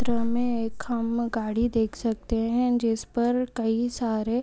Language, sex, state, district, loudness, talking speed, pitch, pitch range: Hindi, female, Rajasthan, Nagaur, -26 LUFS, 160 wpm, 235 Hz, 225-240 Hz